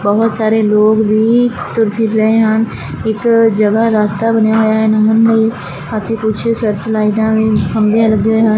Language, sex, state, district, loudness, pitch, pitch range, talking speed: Punjabi, female, Punjab, Fazilka, -12 LUFS, 220 Hz, 215-225 Hz, 170 wpm